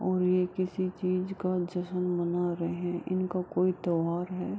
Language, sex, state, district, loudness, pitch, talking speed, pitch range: Hindi, female, Bihar, Kishanganj, -30 LUFS, 180 Hz, 195 wpm, 175-185 Hz